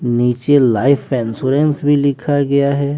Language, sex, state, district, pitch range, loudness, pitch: Hindi, male, Bihar, West Champaran, 125-145 Hz, -15 LUFS, 140 Hz